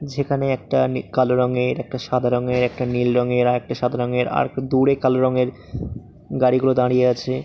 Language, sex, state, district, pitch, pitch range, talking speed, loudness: Bengali, male, West Bengal, Paschim Medinipur, 125 Hz, 125-130 Hz, 185 wpm, -20 LUFS